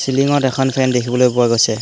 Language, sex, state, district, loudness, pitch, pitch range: Assamese, male, Assam, Hailakandi, -15 LUFS, 130 Hz, 120-135 Hz